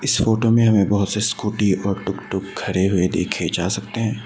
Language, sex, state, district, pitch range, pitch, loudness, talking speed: Hindi, male, Assam, Sonitpur, 95-110 Hz, 105 Hz, -20 LUFS, 210 wpm